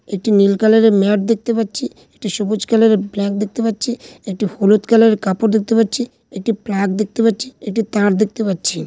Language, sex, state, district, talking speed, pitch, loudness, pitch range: Bengali, male, West Bengal, Malda, 210 wpm, 215 Hz, -16 LUFS, 200-225 Hz